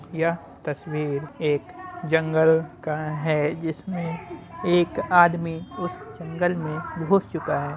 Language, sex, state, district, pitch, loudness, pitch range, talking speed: Hindi, male, Bihar, Muzaffarpur, 160 Hz, -24 LUFS, 155-175 Hz, 115 wpm